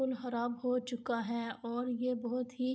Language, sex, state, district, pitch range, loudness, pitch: Urdu, female, Andhra Pradesh, Anantapur, 235-250 Hz, -36 LUFS, 245 Hz